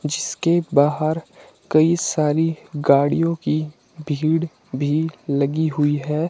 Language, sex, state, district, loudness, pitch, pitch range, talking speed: Hindi, male, Himachal Pradesh, Shimla, -20 LUFS, 155 Hz, 145-165 Hz, 105 wpm